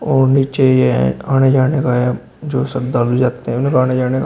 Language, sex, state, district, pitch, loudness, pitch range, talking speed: Hindi, male, Uttar Pradesh, Shamli, 130 Hz, -15 LUFS, 125-135 Hz, 240 wpm